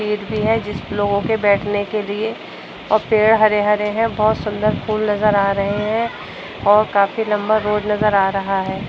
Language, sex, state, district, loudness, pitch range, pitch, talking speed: Hindi, female, Uttar Pradesh, Budaun, -18 LUFS, 205-215 Hz, 210 Hz, 190 wpm